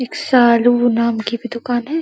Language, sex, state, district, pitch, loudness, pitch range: Hindi, female, Uttar Pradesh, Deoria, 240 Hz, -15 LUFS, 235-250 Hz